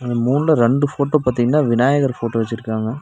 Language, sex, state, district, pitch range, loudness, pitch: Tamil, male, Tamil Nadu, Nilgiris, 120-140 Hz, -17 LUFS, 125 Hz